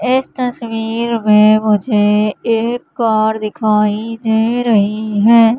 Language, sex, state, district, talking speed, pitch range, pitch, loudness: Hindi, female, Madhya Pradesh, Katni, 105 wpm, 215-230 Hz, 220 Hz, -14 LUFS